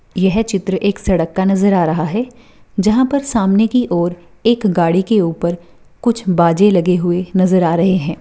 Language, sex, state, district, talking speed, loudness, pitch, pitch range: Hindi, female, Maharashtra, Pune, 190 wpm, -15 LUFS, 190 Hz, 175-215 Hz